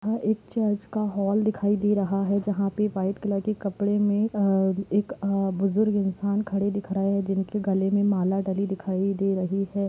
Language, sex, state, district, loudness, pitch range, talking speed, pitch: Hindi, female, Jharkhand, Sahebganj, -25 LUFS, 195-205 Hz, 200 wpm, 200 Hz